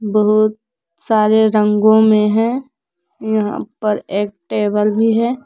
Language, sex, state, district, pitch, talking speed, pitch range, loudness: Hindi, female, Jharkhand, Palamu, 215 Hz, 120 wpm, 210-220 Hz, -15 LUFS